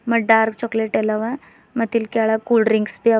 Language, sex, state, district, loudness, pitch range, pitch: Kannada, female, Karnataka, Bidar, -19 LUFS, 220-230 Hz, 225 Hz